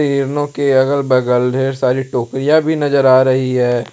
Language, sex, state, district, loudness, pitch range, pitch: Hindi, male, Jharkhand, Ranchi, -14 LUFS, 130-140 Hz, 135 Hz